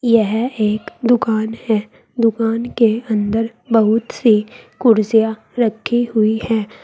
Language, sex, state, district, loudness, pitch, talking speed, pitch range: Hindi, female, Uttar Pradesh, Saharanpur, -17 LUFS, 225 Hz, 115 wpm, 220-235 Hz